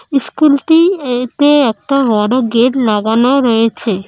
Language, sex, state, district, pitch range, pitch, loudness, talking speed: Bengali, female, West Bengal, Cooch Behar, 225-280 Hz, 250 Hz, -12 LUFS, 105 wpm